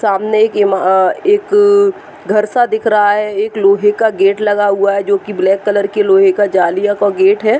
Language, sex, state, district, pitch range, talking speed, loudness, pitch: Hindi, female, Uttar Pradesh, Deoria, 200-220 Hz, 215 wpm, -12 LUFS, 205 Hz